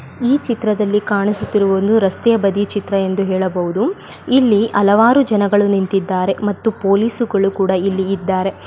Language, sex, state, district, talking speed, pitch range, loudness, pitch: Kannada, female, Karnataka, Bellary, 130 wpm, 195-220 Hz, -16 LUFS, 205 Hz